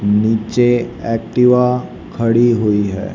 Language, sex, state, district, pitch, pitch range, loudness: Hindi, male, Haryana, Rohtak, 115 Hz, 105-120 Hz, -15 LUFS